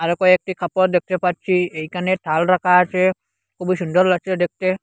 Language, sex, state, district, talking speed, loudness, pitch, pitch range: Bengali, male, Assam, Hailakandi, 175 wpm, -18 LUFS, 180 Hz, 175-185 Hz